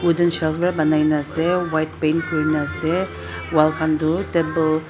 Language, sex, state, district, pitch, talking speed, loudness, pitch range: Nagamese, female, Nagaland, Dimapur, 155 Hz, 170 wpm, -20 LUFS, 155-170 Hz